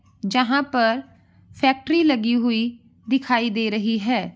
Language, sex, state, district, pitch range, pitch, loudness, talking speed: Hindi, female, Bihar, Begusarai, 225-265 Hz, 240 Hz, -21 LUFS, 125 wpm